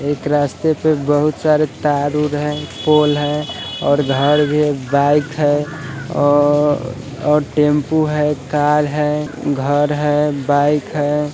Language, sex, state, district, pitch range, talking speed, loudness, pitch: Hindi, male, Bihar, Sitamarhi, 145-150 Hz, 140 wpm, -16 LUFS, 145 Hz